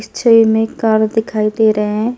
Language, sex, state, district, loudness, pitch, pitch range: Hindi, female, Delhi, New Delhi, -13 LUFS, 220 Hz, 215-225 Hz